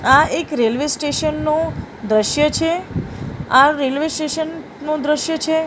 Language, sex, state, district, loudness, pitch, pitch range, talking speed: Gujarati, female, Maharashtra, Mumbai Suburban, -18 LUFS, 300 Hz, 275-315 Hz, 135 wpm